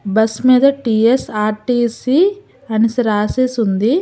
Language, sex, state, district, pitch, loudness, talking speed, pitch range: Telugu, female, Telangana, Hyderabad, 235 Hz, -15 LUFS, 90 wpm, 220-255 Hz